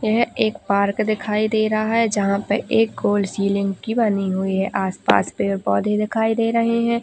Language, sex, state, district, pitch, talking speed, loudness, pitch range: Hindi, female, Chhattisgarh, Raigarh, 215 Hz, 195 wpm, -20 LUFS, 200-225 Hz